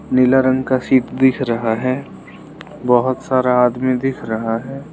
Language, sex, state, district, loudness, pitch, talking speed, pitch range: Hindi, male, Arunachal Pradesh, Lower Dibang Valley, -17 LUFS, 130 Hz, 160 wpm, 125-130 Hz